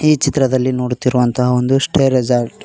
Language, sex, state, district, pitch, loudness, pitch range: Kannada, male, Karnataka, Koppal, 130 Hz, -15 LUFS, 125-135 Hz